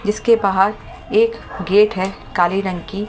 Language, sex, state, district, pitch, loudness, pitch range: Hindi, female, Delhi, New Delhi, 200 Hz, -18 LUFS, 190-210 Hz